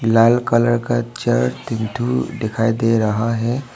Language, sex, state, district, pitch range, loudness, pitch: Hindi, male, Arunachal Pradesh, Papum Pare, 110-120 Hz, -18 LUFS, 115 Hz